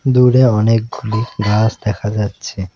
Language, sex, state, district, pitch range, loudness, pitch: Bengali, male, West Bengal, Alipurduar, 105-115 Hz, -15 LUFS, 110 Hz